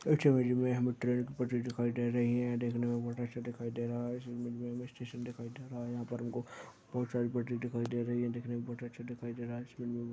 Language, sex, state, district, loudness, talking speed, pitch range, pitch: Hindi, male, Chhattisgarh, Balrampur, -36 LUFS, 280 wpm, 120-125 Hz, 120 Hz